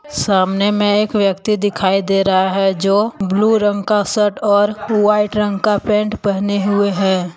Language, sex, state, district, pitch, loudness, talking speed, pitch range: Hindi, male, Jharkhand, Deoghar, 205 Hz, -15 LUFS, 170 wpm, 195-210 Hz